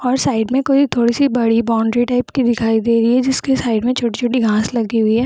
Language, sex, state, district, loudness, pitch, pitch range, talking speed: Hindi, female, Bihar, Jamui, -16 LUFS, 240 Hz, 225-255 Hz, 230 wpm